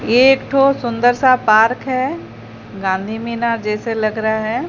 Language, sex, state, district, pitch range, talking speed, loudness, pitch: Hindi, female, Odisha, Sambalpur, 215-255 Hz, 155 wpm, -16 LUFS, 230 Hz